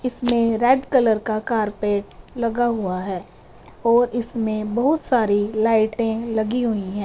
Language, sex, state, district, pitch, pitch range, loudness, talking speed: Hindi, female, Punjab, Fazilka, 225 Hz, 215-240 Hz, -21 LUFS, 135 wpm